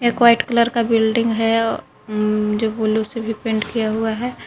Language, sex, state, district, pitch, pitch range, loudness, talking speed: Hindi, female, Jharkhand, Garhwa, 225 Hz, 220-235 Hz, -19 LUFS, 215 wpm